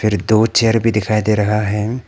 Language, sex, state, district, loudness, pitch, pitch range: Hindi, male, Arunachal Pradesh, Papum Pare, -15 LUFS, 110 Hz, 105-115 Hz